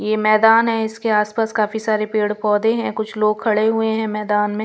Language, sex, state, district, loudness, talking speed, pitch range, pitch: Hindi, female, Punjab, Pathankot, -18 LUFS, 205 wpm, 210-220 Hz, 215 Hz